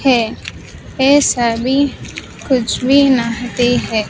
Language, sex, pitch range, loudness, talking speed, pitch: Hindi, female, 235-270 Hz, -14 LUFS, 100 wpm, 250 Hz